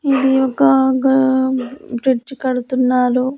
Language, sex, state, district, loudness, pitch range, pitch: Telugu, female, Andhra Pradesh, Annamaya, -16 LUFS, 255-265 Hz, 260 Hz